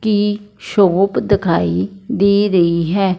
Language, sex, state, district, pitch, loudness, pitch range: Hindi, female, Punjab, Fazilka, 195 Hz, -15 LUFS, 175-205 Hz